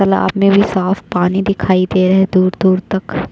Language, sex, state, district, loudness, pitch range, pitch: Hindi, female, Chhattisgarh, Jashpur, -14 LUFS, 185-195 Hz, 190 Hz